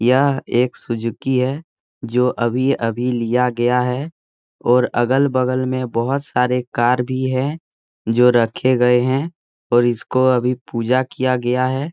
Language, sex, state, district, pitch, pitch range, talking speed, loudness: Hindi, male, Bihar, Jahanabad, 125 Hz, 120-130 Hz, 140 wpm, -18 LUFS